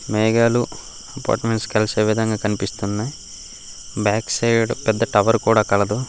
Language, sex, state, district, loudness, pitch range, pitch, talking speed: Telugu, male, Andhra Pradesh, Guntur, -19 LUFS, 105-115 Hz, 110 Hz, 110 wpm